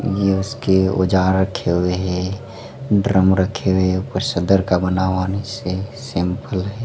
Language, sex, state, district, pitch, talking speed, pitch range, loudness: Hindi, male, Madhya Pradesh, Dhar, 95 Hz, 155 wpm, 95-100 Hz, -19 LUFS